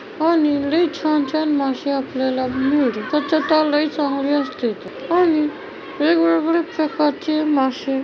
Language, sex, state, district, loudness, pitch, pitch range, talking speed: Marathi, female, Maharashtra, Chandrapur, -19 LUFS, 300 Hz, 275-315 Hz, 120 wpm